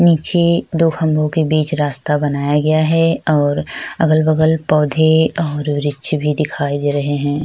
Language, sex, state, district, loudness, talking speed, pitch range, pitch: Hindi, female, Chhattisgarh, Sukma, -16 LUFS, 170 wpm, 145-160 Hz, 155 Hz